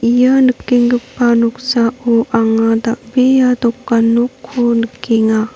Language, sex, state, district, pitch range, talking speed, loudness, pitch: Garo, female, Meghalaya, North Garo Hills, 230-250 Hz, 85 wpm, -13 LUFS, 235 Hz